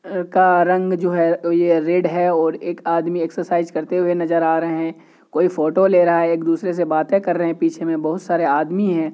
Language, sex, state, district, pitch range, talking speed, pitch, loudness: Hindi, male, Bihar, Kishanganj, 165-180 Hz, 235 wpm, 170 Hz, -18 LUFS